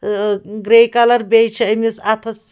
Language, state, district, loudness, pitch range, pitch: Kashmiri, Punjab, Kapurthala, -14 LUFS, 210-230 Hz, 225 Hz